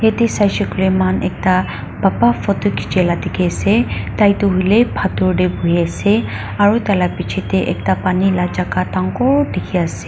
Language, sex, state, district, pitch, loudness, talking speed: Nagamese, female, Nagaland, Dimapur, 185 Hz, -16 LUFS, 180 wpm